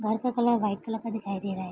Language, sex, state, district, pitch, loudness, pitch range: Hindi, female, Bihar, Araria, 220 Hz, -29 LUFS, 200-230 Hz